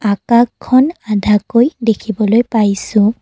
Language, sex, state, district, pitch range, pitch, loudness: Assamese, female, Assam, Kamrup Metropolitan, 210-235 Hz, 220 Hz, -13 LUFS